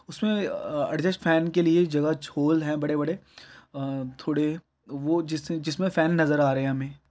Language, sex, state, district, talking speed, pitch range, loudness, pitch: Hindi, male, Uttar Pradesh, Hamirpur, 185 wpm, 150-170 Hz, -26 LUFS, 155 Hz